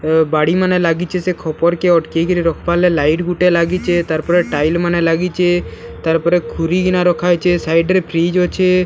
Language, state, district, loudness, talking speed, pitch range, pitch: Sambalpuri, Odisha, Sambalpur, -15 LUFS, 195 wpm, 165-180 Hz, 175 Hz